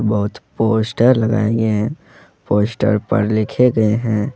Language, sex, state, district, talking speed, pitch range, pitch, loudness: Hindi, male, Jharkhand, Deoghar, 140 wpm, 105-115 Hz, 110 Hz, -17 LUFS